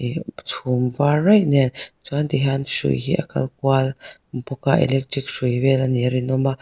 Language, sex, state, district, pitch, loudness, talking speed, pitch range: Mizo, female, Mizoram, Aizawl, 135 Hz, -20 LUFS, 180 wpm, 125-145 Hz